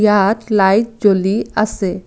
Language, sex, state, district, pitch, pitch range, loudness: Assamese, female, Assam, Kamrup Metropolitan, 210 Hz, 195-215 Hz, -15 LUFS